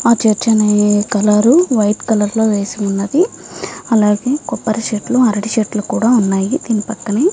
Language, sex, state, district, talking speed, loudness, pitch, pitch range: Telugu, female, Andhra Pradesh, Visakhapatnam, 140 wpm, -14 LUFS, 220 Hz, 210-240 Hz